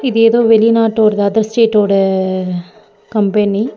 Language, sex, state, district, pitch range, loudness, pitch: Tamil, female, Tamil Nadu, Nilgiris, 200-225 Hz, -12 LUFS, 215 Hz